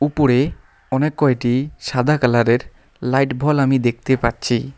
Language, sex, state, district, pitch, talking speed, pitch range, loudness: Bengali, male, West Bengal, Alipurduar, 130 Hz, 125 wpm, 125-140 Hz, -18 LUFS